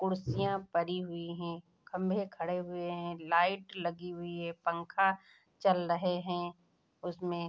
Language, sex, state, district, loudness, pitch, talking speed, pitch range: Hindi, female, Bihar, Saharsa, -35 LUFS, 175 Hz, 135 wpm, 170-185 Hz